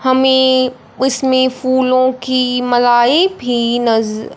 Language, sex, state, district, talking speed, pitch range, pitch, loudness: Hindi, male, Punjab, Fazilka, 95 wpm, 245-260 Hz, 255 Hz, -13 LUFS